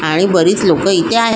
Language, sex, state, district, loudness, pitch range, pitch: Marathi, female, Maharashtra, Solapur, -12 LUFS, 170-195 Hz, 185 Hz